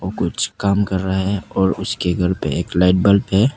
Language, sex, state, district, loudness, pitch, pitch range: Hindi, male, Arunachal Pradesh, Papum Pare, -18 LUFS, 95 Hz, 90-100 Hz